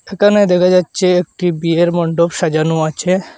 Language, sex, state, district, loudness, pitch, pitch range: Bengali, male, Assam, Hailakandi, -14 LUFS, 175 Hz, 165-185 Hz